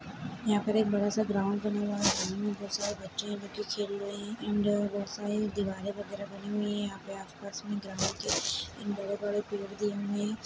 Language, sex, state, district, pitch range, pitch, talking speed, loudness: Hindi, male, Chhattisgarh, Bastar, 200-210 Hz, 205 Hz, 220 wpm, -33 LUFS